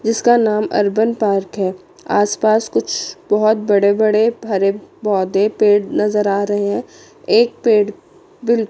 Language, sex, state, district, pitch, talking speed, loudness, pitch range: Hindi, female, Chandigarh, Chandigarh, 210 Hz, 145 wpm, -16 LUFS, 205-225 Hz